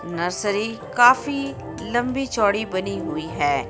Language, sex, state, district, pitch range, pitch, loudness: Hindi, female, Jharkhand, Ranchi, 170-245 Hz, 205 Hz, -22 LUFS